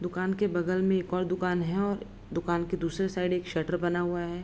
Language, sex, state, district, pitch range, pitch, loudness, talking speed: Hindi, female, Bihar, Araria, 175-185 Hz, 180 Hz, -30 LUFS, 230 wpm